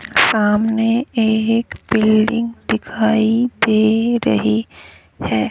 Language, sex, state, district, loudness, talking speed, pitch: Hindi, female, Haryana, Rohtak, -16 LUFS, 75 wpm, 220 Hz